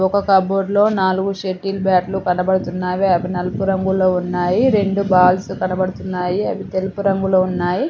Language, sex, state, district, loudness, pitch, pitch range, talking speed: Telugu, female, Telangana, Mahabubabad, -18 LUFS, 190 Hz, 180-195 Hz, 135 wpm